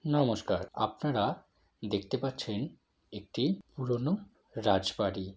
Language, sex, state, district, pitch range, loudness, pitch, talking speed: Bengali, male, West Bengal, Jalpaiguri, 95-135 Hz, -33 LUFS, 115 Hz, 90 wpm